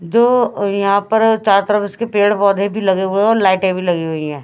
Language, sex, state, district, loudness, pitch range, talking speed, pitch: Hindi, female, Chhattisgarh, Raipur, -15 LUFS, 190-215 Hz, 245 wpm, 200 Hz